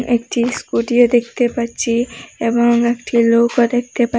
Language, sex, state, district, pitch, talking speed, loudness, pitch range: Bengali, female, Assam, Hailakandi, 235 Hz, 130 wpm, -16 LUFS, 235-240 Hz